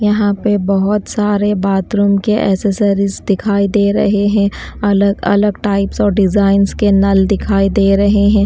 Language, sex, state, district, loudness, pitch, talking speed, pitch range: Hindi, female, Bihar, Kaimur, -13 LUFS, 200 Hz, 155 wpm, 200-205 Hz